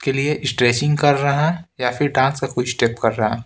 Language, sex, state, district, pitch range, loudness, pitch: Hindi, male, Bihar, Patna, 120-145 Hz, -19 LUFS, 135 Hz